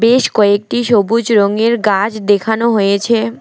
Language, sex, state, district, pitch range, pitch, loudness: Bengali, female, West Bengal, Alipurduar, 205-235 Hz, 220 Hz, -13 LUFS